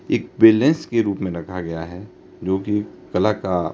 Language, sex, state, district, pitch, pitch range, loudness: Hindi, male, Himachal Pradesh, Shimla, 95 Hz, 90-110 Hz, -20 LUFS